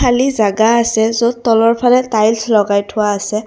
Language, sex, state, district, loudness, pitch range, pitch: Assamese, female, Assam, Kamrup Metropolitan, -13 LUFS, 215-235 Hz, 225 Hz